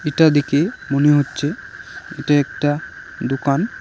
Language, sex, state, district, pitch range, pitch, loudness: Bengali, male, West Bengal, Cooch Behar, 140-150 Hz, 145 Hz, -18 LUFS